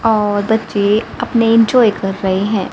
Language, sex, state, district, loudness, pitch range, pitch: Hindi, female, Haryana, Rohtak, -14 LUFS, 200-225 Hz, 215 Hz